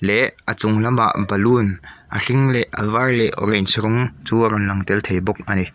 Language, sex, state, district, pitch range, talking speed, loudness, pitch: Mizo, male, Mizoram, Aizawl, 100-115 Hz, 230 wpm, -18 LUFS, 105 Hz